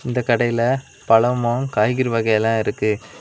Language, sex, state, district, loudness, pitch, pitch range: Tamil, male, Tamil Nadu, Kanyakumari, -19 LUFS, 120 Hz, 110-125 Hz